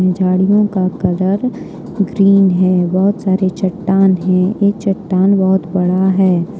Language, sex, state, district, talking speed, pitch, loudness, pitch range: Hindi, female, Jharkhand, Ranchi, 125 wpm, 190 Hz, -14 LUFS, 185-195 Hz